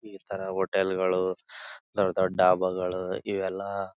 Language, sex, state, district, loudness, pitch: Kannada, male, Karnataka, Bijapur, -28 LUFS, 95 Hz